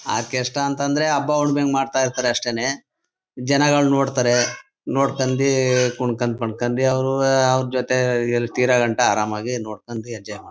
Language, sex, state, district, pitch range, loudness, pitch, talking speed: Kannada, male, Karnataka, Mysore, 120-135 Hz, -20 LUFS, 130 Hz, 130 wpm